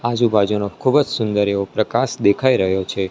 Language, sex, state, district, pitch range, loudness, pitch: Gujarati, male, Gujarat, Gandhinagar, 95-110 Hz, -18 LUFS, 100 Hz